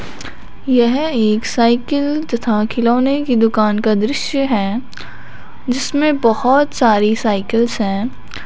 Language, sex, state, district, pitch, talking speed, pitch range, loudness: Hindi, female, Punjab, Fazilka, 235 Hz, 105 wpm, 220-270 Hz, -16 LUFS